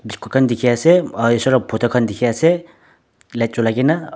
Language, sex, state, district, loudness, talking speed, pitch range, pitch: Nagamese, male, Nagaland, Dimapur, -17 LUFS, 215 wpm, 115-155 Hz, 120 Hz